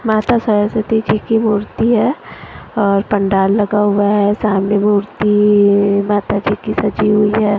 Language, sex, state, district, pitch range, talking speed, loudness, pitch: Hindi, female, Delhi, New Delhi, 205-215 Hz, 150 wpm, -14 LUFS, 210 Hz